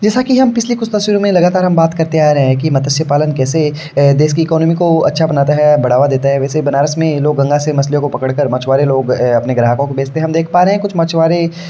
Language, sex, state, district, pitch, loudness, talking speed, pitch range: Hindi, male, Uttar Pradesh, Varanasi, 150 Hz, -12 LUFS, 275 wpm, 140-165 Hz